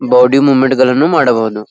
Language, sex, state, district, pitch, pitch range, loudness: Kannada, female, Karnataka, Belgaum, 130 Hz, 125-140 Hz, -10 LUFS